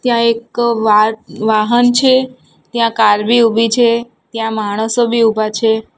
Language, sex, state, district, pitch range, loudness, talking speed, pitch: Gujarati, female, Gujarat, Gandhinagar, 220-235 Hz, -13 LUFS, 150 wpm, 230 Hz